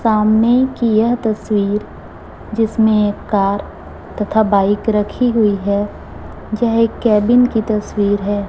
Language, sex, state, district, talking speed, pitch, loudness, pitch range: Hindi, female, Chhattisgarh, Raipur, 125 wpm, 215 Hz, -16 LUFS, 205-225 Hz